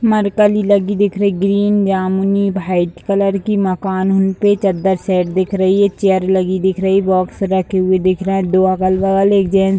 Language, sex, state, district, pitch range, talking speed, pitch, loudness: Hindi, female, Bihar, Sitamarhi, 185-200 Hz, 200 wpm, 195 Hz, -15 LUFS